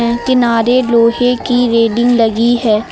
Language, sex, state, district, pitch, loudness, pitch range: Hindi, female, Uttar Pradesh, Lucknow, 235 Hz, -12 LUFS, 230-245 Hz